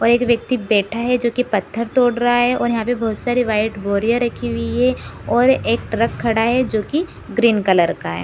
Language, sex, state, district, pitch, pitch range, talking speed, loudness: Hindi, female, Bihar, Supaul, 235 Hz, 215-245 Hz, 225 wpm, -18 LUFS